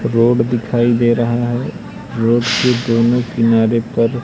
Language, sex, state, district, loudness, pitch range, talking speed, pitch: Hindi, male, Madhya Pradesh, Katni, -15 LUFS, 115-120 Hz, 140 wpm, 120 Hz